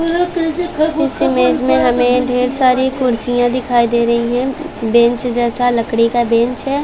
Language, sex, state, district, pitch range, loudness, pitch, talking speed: Hindi, female, Chhattisgarh, Balrampur, 235-275 Hz, -15 LUFS, 245 Hz, 150 wpm